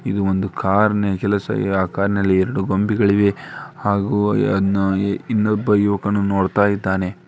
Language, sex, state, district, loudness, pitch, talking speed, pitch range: Kannada, male, Karnataka, Dharwad, -18 LUFS, 100 Hz, 125 wpm, 95-105 Hz